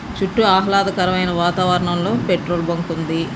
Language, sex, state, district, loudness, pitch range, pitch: Telugu, male, Andhra Pradesh, Guntur, -18 LUFS, 170-190 Hz, 180 Hz